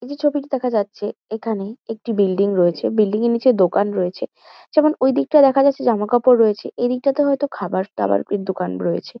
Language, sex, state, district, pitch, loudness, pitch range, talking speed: Bengali, female, West Bengal, Kolkata, 225 Hz, -19 LUFS, 195-265 Hz, 165 wpm